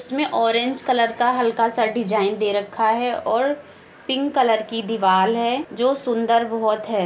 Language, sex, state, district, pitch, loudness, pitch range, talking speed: Hindi, female, Uttar Pradesh, Muzaffarnagar, 230 Hz, -20 LUFS, 220-250 Hz, 170 wpm